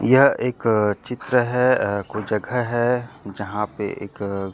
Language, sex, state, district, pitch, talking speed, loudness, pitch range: Chhattisgarhi, male, Chhattisgarh, Korba, 115 Hz, 130 wpm, -21 LUFS, 105-125 Hz